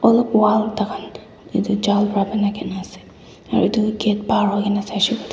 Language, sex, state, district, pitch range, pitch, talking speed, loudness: Nagamese, female, Nagaland, Dimapur, 200-215 Hz, 210 Hz, 180 wpm, -19 LUFS